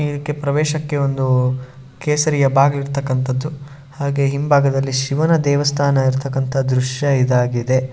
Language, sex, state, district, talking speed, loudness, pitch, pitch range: Kannada, male, Karnataka, Shimoga, 100 wpm, -18 LUFS, 140 Hz, 130-145 Hz